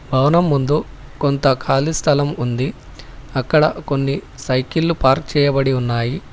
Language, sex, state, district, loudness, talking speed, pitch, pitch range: Telugu, male, Telangana, Hyderabad, -18 LUFS, 115 wpm, 135 Hz, 130-150 Hz